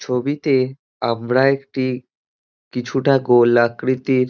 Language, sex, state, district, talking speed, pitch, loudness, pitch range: Bengali, male, West Bengal, Dakshin Dinajpur, 85 wpm, 130 Hz, -18 LUFS, 125-135 Hz